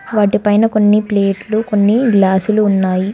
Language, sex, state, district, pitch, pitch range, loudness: Telugu, female, Telangana, Hyderabad, 210 Hz, 195-215 Hz, -13 LUFS